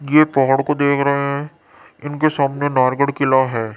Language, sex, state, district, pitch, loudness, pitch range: Hindi, male, Rajasthan, Jaipur, 140 Hz, -17 LUFS, 135-145 Hz